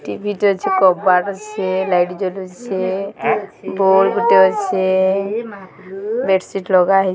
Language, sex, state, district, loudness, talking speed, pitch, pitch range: Odia, female, Odisha, Sambalpur, -17 LUFS, 110 wpm, 190 Hz, 185-200 Hz